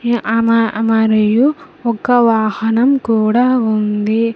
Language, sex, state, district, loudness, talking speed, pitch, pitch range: Telugu, female, Andhra Pradesh, Sri Satya Sai, -14 LUFS, 95 wpm, 225 Hz, 220-240 Hz